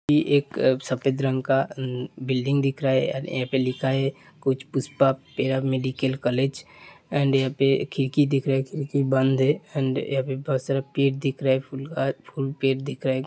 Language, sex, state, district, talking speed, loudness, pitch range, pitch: Hindi, male, Uttar Pradesh, Hamirpur, 180 wpm, -24 LUFS, 130-140 Hz, 135 Hz